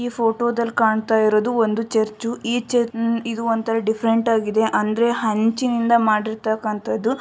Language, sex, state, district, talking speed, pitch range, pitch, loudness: Kannada, female, Karnataka, Shimoga, 125 wpm, 220-235 Hz, 225 Hz, -20 LUFS